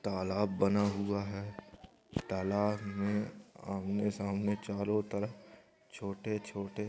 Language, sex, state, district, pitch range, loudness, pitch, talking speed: Hindi, male, Andhra Pradesh, Anantapur, 100-105 Hz, -35 LUFS, 100 Hz, 95 wpm